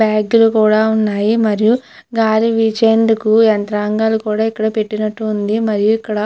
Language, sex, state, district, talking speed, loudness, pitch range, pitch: Telugu, female, Andhra Pradesh, Chittoor, 125 wpm, -14 LUFS, 215-225 Hz, 220 Hz